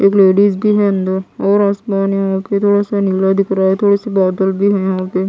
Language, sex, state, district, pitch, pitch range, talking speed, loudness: Hindi, female, Bihar, West Champaran, 195 Hz, 190-200 Hz, 250 wpm, -14 LUFS